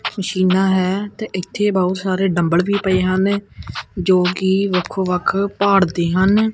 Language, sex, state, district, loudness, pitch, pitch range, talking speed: Punjabi, male, Punjab, Kapurthala, -17 LUFS, 190 Hz, 185-200 Hz, 155 wpm